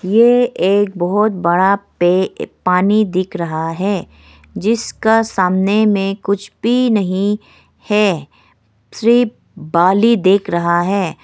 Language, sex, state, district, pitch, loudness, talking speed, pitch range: Hindi, female, Arunachal Pradesh, Lower Dibang Valley, 195 Hz, -15 LUFS, 110 wpm, 175-210 Hz